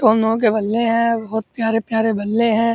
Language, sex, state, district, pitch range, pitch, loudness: Hindi, male, Uttar Pradesh, Muzaffarnagar, 220-230 Hz, 225 Hz, -18 LUFS